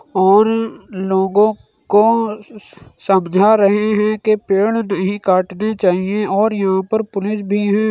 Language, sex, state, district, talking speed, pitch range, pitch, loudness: Hindi, male, Uttar Pradesh, Muzaffarnagar, 130 wpm, 195-215 Hz, 205 Hz, -16 LUFS